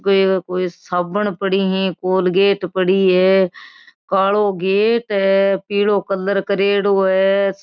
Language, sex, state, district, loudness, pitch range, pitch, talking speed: Marwari, female, Rajasthan, Nagaur, -17 LUFS, 190-200 Hz, 195 Hz, 100 wpm